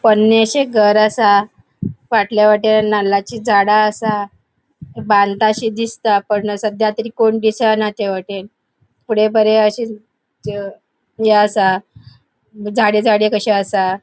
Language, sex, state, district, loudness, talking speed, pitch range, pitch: Konkani, female, Goa, North and South Goa, -15 LUFS, 110 wpm, 205-220 Hz, 215 Hz